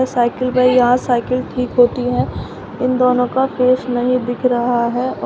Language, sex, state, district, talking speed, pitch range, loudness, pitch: Hindi, female, Uttar Pradesh, Shamli, 170 wpm, 245-255 Hz, -16 LUFS, 250 Hz